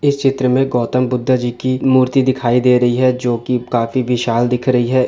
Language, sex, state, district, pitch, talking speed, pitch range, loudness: Hindi, male, Andhra Pradesh, Srikakulam, 125 Hz, 225 wpm, 120-130 Hz, -15 LUFS